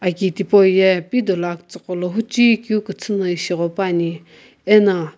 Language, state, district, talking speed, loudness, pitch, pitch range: Sumi, Nagaland, Kohima, 140 wpm, -17 LUFS, 190 Hz, 175-205 Hz